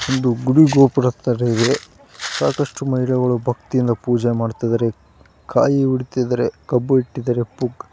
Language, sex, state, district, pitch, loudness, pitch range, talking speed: Kannada, male, Karnataka, Gulbarga, 125 Hz, -18 LUFS, 120-130 Hz, 115 wpm